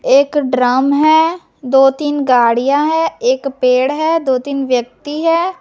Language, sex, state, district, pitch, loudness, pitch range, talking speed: Hindi, female, Chhattisgarh, Raipur, 280 Hz, -14 LUFS, 260-315 Hz, 150 wpm